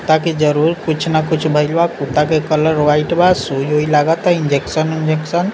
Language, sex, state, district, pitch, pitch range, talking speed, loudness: Bhojpuri, male, Bihar, East Champaran, 155 Hz, 150-165 Hz, 175 wpm, -15 LUFS